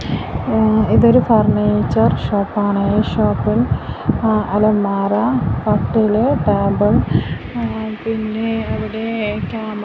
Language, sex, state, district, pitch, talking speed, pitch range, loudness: Malayalam, female, Kerala, Kasaragod, 215 Hz, 80 wpm, 200-225 Hz, -17 LUFS